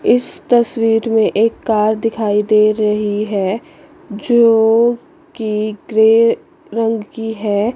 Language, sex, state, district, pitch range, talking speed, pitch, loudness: Hindi, female, Chandigarh, Chandigarh, 215-235 Hz, 115 wpm, 225 Hz, -15 LUFS